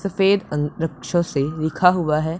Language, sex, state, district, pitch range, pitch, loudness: Hindi, male, Punjab, Pathankot, 150-180 Hz, 160 Hz, -20 LUFS